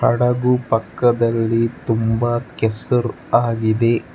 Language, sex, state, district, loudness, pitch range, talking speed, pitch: Kannada, male, Karnataka, Bangalore, -18 LUFS, 115-120 Hz, 70 wpm, 115 Hz